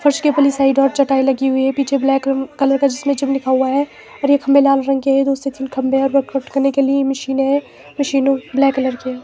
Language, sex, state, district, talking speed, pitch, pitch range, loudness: Hindi, female, Himachal Pradesh, Shimla, 280 wpm, 275 Hz, 270-275 Hz, -16 LUFS